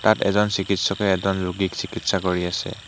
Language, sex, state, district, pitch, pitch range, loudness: Assamese, male, Assam, Hailakandi, 95 Hz, 95-100 Hz, -22 LUFS